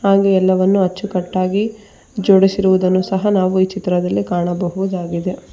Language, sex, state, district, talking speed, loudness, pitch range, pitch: Kannada, female, Karnataka, Bangalore, 100 wpm, -16 LUFS, 185-195 Hz, 185 Hz